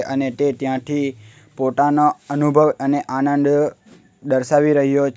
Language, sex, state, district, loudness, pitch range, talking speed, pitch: Gujarati, male, Gujarat, Valsad, -18 LUFS, 135-145 Hz, 115 wpm, 140 Hz